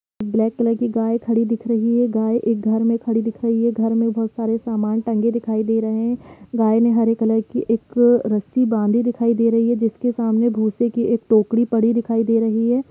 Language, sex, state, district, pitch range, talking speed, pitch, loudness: Hindi, female, Jharkhand, Sahebganj, 225-235 Hz, 230 wpm, 230 Hz, -19 LUFS